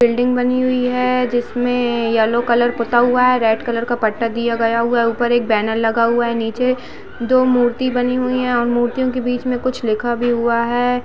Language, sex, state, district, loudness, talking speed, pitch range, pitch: Hindi, female, Jharkhand, Sahebganj, -17 LUFS, 205 wpm, 235-250 Hz, 240 Hz